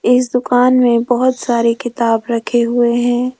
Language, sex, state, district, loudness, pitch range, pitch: Hindi, female, Rajasthan, Jaipur, -14 LUFS, 235-250 Hz, 245 Hz